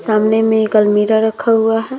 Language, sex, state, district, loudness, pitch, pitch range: Hindi, female, Bihar, Vaishali, -13 LUFS, 220 Hz, 215-225 Hz